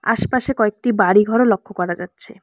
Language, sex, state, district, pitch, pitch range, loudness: Bengali, female, West Bengal, Alipurduar, 220 Hz, 200-235 Hz, -18 LUFS